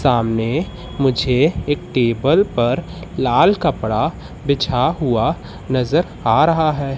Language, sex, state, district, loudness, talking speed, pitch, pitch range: Hindi, male, Madhya Pradesh, Katni, -17 LUFS, 110 wpm, 135 Hz, 120-155 Hz